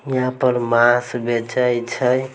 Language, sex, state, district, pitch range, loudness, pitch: Maithili, male, Bihar, Samastipur, 120-130 Hz, -18 LUFS, 125 Hz